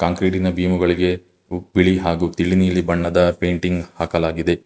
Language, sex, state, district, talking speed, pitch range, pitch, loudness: Kannada, male, Karnataka, Bangalore, 90 wpm, 85-90 Hz, 90 Hz, -19 LUFS